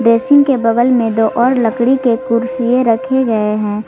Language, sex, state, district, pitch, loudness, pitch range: Hindi, female, Jharkhand, Garhwa, 240 Hz, -13 LUFS, 230-255 Hz